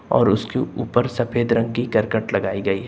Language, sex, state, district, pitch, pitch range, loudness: Hindi, male, Uttar Pradesh, Lucknow, 115 Hz, 100-120 Hz, -21 LUFS